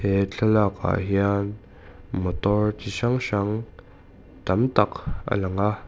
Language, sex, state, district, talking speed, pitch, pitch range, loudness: Mizo, male, Mizoram, Aizawl, 135 wpm, 100 Hz, 95-105 Hz, -24 LUFS